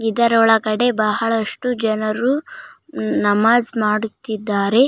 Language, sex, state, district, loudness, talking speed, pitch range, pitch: Kannada, female, Karnataka, Raichur, -18 LUFS, 85 wpm, 215-240 Hz, 225 Hz